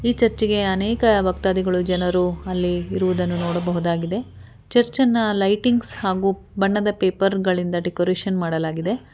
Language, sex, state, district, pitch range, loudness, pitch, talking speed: Kannada, female, Karnataka, Bangalore, 180-210 Hz, -20 LUFS, 190 Hz, 105 wpm